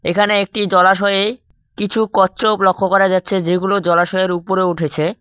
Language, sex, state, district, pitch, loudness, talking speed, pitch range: Bengali, male, West Bengal, Cooch Behar, 190 Hz, -15 LUFS, 140 wpm, 185-205 Hz